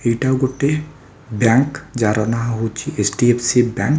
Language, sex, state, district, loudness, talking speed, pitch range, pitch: Odia, male, Odisha, Khordha, -18 LUFS, 180 wpm, 115-140 Hz, 120 Hz